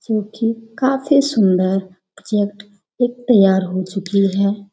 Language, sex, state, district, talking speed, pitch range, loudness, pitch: Hindi, female, Bihar, Jamui, 125 wpm, 195-230 Hz, -17 LUFS, 205 Hz